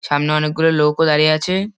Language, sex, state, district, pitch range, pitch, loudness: Bengali, male, West Bengal, Dakshin Dinajpur, 150-160 Hz, 155 Hz, -16 LUFS